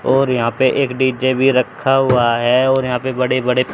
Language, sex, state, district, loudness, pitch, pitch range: Hindi, male, Haryana, Charkhi Dadri, -15 LUFS, 130 Hz, 125-130 Hz